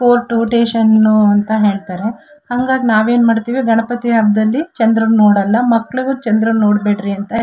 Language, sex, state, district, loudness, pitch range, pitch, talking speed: Kannada, female, Karnataka, Shimoga, -13 LUFS, 210-240 Hz, 225 Hz, 135 wpm